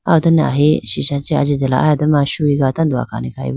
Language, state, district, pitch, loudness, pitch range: Idu Mishmi, Arunachal Pradesh, Lower Dibang Valley, 145 Hz, -15 LUFS, 135-155 Hz